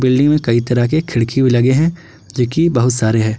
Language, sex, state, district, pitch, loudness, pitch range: Hindi, male, Jharkhand, Garhwa, 125 Hz, -14 LUFS, 115-150 Hz